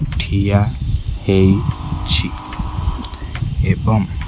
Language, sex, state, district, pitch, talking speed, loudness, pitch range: Odia, male, Odisha, Khordha, 95 Hz, 55 wpm, -18 LUFS, 80-105 Hz